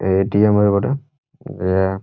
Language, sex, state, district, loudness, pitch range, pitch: Bengali, male, West Bengal, Jhargram, -17 LUFS, 95-135 Hz, 105 Hz